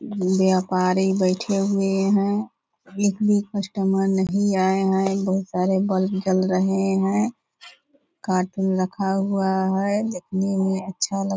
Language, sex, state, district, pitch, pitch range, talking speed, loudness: Hindi, female, Bihar, Purnia, 195 Hz, 190-200 Hz, 160 wpm, -22 LUFS